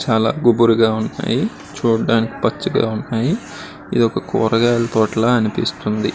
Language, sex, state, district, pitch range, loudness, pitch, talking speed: Telugu, male, Andhra Pradesh, Srikakulam, 110-120 Hz, -17 LUFS, 115 Hz, 105 wpm